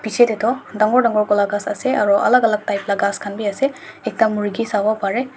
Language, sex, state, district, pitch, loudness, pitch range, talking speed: Nagamese, male, Nagaland, Dimapur, 215 Hz, -18 LUFS, 205-245 Hz, 225 wpm